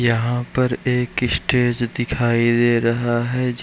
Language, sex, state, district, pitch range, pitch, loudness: Hindi, male, Uttarakhand, Uttarkashi, 120-125 Hz, 120 Hz, -19 LUFS